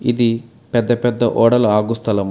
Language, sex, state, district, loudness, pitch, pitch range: Telugu, male, Telangana, Hyderabad, -16 LUFS, 115 Hz, 115-120 Hz